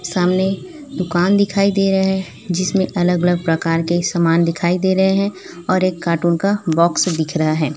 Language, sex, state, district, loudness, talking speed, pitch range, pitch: Hindi, female, Chhattisgarh, Raipur, -17 LUFS, 185 wpm, 170-190 Hz, 180 Hz